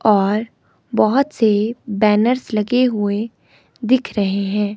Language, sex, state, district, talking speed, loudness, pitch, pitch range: Hindi, female, Himachal Pradesh, Shimla, 115 wpm, -18 LUFS, 215 Hz, 205-240 Hz